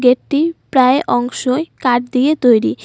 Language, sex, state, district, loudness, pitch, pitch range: Bengali, female, West Bengal, Alipurduar, -15 LUFS, 255 Hz, 250-290 Hz